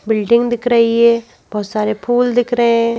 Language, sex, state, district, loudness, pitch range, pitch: Hindi, female, Madhya Pradesh, Bhopal, -15 LUFS, 220-240 Hz, 235 Hz